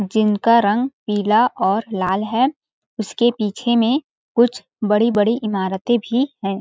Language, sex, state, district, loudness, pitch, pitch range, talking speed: Hindi, female, Chhattisgarh, Balrampur, -18 LUFS, 220 Hz, 205-240 Hz, 125 wpm